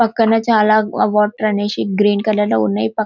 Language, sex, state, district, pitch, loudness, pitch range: Telugu, female, Telangana, Karimnagar, 210 Hz, -15 LUFS, 205-220 Hz